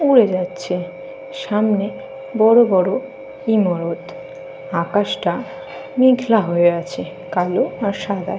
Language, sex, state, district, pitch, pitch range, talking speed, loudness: Bengali, female, Jharkhand, Jamtara, 205 Hz, 180-270 Hz, 95 wpm, -18 LUFS